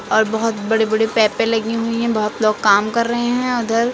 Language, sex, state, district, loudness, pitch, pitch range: Hindi, female, Uttar Pradesh, Lucknow, -17 LUFS, 225 Hz, 220-235 Hz